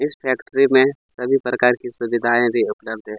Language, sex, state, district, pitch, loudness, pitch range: Hindi, male, Chhattisgarh, Kabirdham, 125 Hz, -19 LUFS, 120-135 Hz